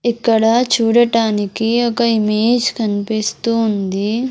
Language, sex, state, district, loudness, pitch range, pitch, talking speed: Telugu, female, Andhra Pradesh, Sri Satya Sai, -16 LUFS, 215-235 Hz, 225 Hz, 85 wpm